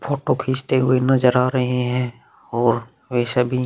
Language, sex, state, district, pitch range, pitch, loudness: Hindi, male, Bihar, Vaishali, 125-130 Hz, 125 Hz, -20 LUFS